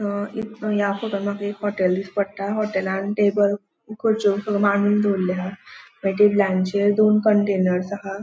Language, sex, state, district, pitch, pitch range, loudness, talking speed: Konkani, female, Goa, North and South Goa, 205 Hz, 195-210 Hz, -21 LUFS, 140 wpm